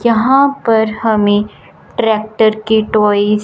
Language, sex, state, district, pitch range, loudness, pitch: Hindi, female, Punjab, Fazilka, 210-225 Hz, -13 LUFS, 220 Hz